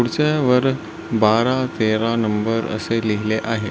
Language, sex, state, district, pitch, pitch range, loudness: Marathi, male, Maharashtra, Solapur, 115 Hz, 110-125 Hz, -19 LUFS